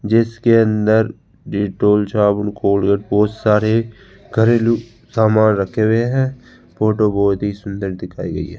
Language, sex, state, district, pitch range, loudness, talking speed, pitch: Hindi, male, Rajasthan, Jaipur, 100-115 Hz, -17 LUFS, 135 wpm, 110 Hz